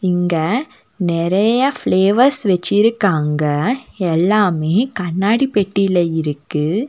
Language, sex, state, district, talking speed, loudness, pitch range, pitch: Tamil, female, Tamil Nadu, Nilgiris, 70 wpm, -16 LUFS, 170-225 Hz, 190 Hz